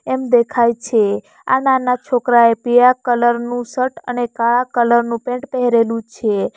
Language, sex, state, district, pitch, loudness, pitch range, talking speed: Gujarati, female, Gujarat, Valsad, 240 Hz, -16 LUFS, 235-250 Hz, 165 wpm